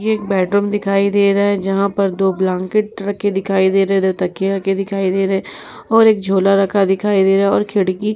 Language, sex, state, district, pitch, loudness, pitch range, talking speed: Hindi, female, Uttar Pradesh, Muzaffarnagar, 195 Hz, -16 LUFS, 195-205 Hz, 250 wpm